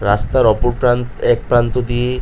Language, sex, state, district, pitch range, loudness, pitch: Bengali, male, West Bengal, North 24 Parganas, 120-125 Hz, -16 LUFS, 120 Hz